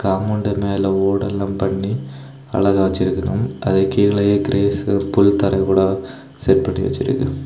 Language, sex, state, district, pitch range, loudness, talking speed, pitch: Tamil, male, Tamil Nadu, Kanyakumari, 95-105 Hz, -18 LUFS, 120 wpm, 100 Hz